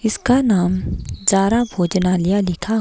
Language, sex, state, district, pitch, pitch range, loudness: Hindi, female, Himachal Pradesh, Shimla, 195 Hz, 180-225 Hz, -18 LUFS